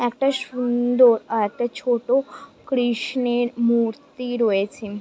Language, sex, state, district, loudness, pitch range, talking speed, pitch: Bengali, female, West Bengal, Jhargram, -21 LUFS, 230-250 Hz, 110 wpm, 240 Hz